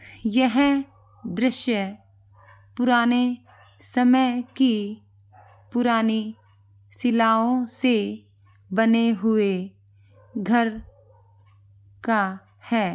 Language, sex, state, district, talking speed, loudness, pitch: Hindi, female, Jharkhand, Sahebganj, 65 wpm, -22 LUFS, 220 Hz